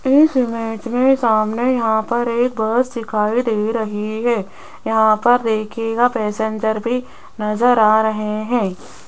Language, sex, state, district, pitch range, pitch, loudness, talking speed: Hindi, female, Rajasthan, Jaipur, 215-245 Hz, 225 Hz, -18 LUFS, 140 wpm